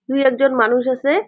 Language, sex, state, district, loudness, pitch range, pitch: Bengali, female, West Bengal, Jalpaiguri, -16 LUFS, 255-275 Hz, 265 Hz